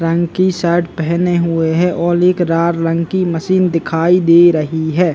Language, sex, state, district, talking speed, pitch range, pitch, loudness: Hindi, male, Chhattisgarh, Bilaspur, 185 wpm, 165-180 Hz, 170 Hz, -14 LUFS